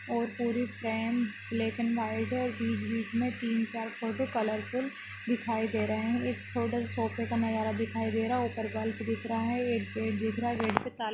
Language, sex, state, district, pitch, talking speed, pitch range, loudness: Hindi, female, Maharashtra, Solapur, 230 Hz, 185 wpm, 225-235 Hz, -32 LUFS